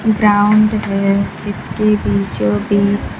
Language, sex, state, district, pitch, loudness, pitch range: Hindi, female, Bihar, Kaimur, 205 Hz, -15 LUFS, 195-210 Hz